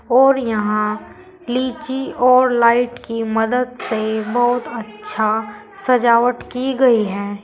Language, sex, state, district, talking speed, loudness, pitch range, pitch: Hindi, female, Uttar Pradesh, Saharanpur, 115 wpm, -17 LUFS, 220-250 Hz, 240 Hz